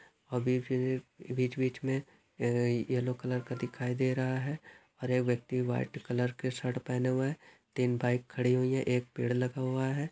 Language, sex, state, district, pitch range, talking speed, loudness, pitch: Hindi, male, Chhattisgarh, Bilaspur, 125-130 Hz, 195 wpm, -33 LUFS, 125 Hz